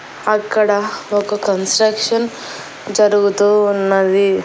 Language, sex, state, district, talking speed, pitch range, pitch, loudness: Telugu, female, Andhra Pradesh, Annamaya, 65 wpm, 200-215 Hz, 205 Hz, -15 LUFS